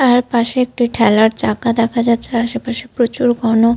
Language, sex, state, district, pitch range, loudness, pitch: Bengali, female, Jharkhand, Sahebganj, 230-245 Hz, -15 LUFS, 235 Hz